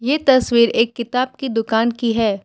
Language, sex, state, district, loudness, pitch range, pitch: Hindi, female, Assam, Kamrup Metropolitan, -17 LUFS, 230-255 Hz, 235 Hz